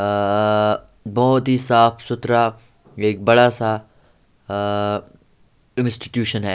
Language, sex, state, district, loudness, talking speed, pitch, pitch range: Hindi, male, Bihar, Patna, -19 LUFS, 80 wpm, 110 Hz, 105-120 Hz